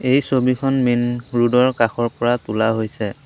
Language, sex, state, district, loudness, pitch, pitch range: Assamese, male, Assam, Sonitpur, -18 LUFS, 120 Hz, 115-130 Hz